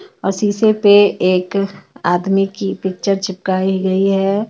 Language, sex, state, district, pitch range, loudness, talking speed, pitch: Hindi, female, Jharkhand, Ranchi, 190-205 Hz, -16 LUFS, 135 wpm, 195 Hz